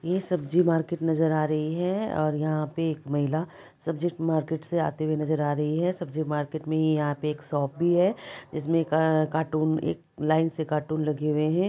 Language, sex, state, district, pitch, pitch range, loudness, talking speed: Maithili, male, Bihar, Supaul, 155 Hz, 155-165 Hz, -27 LUFS, 210 wpm